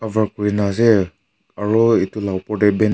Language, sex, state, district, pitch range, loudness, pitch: Nagamese, male, Nagaland, Kohima, 100-110 Hz, -18 LUFS, 105 Hz